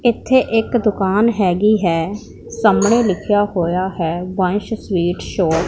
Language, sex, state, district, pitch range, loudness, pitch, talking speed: Punjabi, female, Punjab, Pathankot, 180-220 Hz, -17 LUFS, 205 Hz, 135 wpm